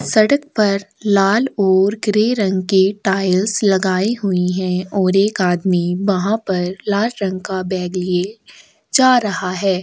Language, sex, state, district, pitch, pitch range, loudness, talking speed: Hindi, female, Chhattisgarh, Korba, 195 Hz, 185-210 Hz, -17 LUFS, 145 wpm